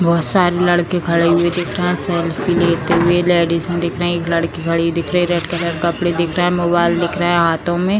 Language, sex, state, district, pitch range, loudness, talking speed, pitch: Hindi, female, Bihar, Purnia, 170-175 Hz, -16 LUFS, 255 wpm, 175 Hz